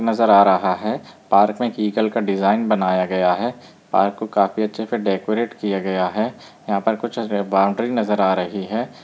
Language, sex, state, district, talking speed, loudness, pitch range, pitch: Hindi, female, Bihar, Muzaffarpur, 190 wpm, -20 LUFS, 95-110 Hz, 105 Hz